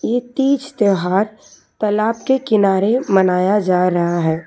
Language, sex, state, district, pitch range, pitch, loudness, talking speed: Hindi, female, Telangana, Hyderabad, 185-235 Hz, 205 Hz, -17 LUFS, 135 wpm